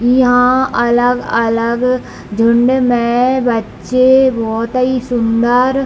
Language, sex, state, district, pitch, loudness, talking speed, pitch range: Hindi, female, Bihar, East Champaran, 245 Hz, -13 LUFS, 90 wpm, 235-255 Hz